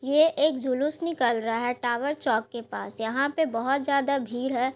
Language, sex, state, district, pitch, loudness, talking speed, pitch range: Hindi, female, Bihar, Gaya, 265 Hz, -26 LUFS, 200 wpm, 240-285 Hz